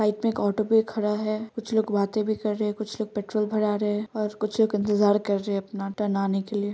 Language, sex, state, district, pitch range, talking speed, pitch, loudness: Hindi, female, Chhattisgarh, Kabirdham, 205-215 Hz, 285 wpm, 210 Hz, -26 LUFS